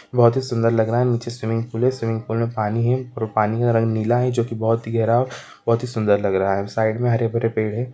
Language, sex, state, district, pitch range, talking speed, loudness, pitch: Hindi, male, Chhattisgarh, Bilaspur, 110-120 Hz, 285 wpm, -21 LUFS, 115 Hz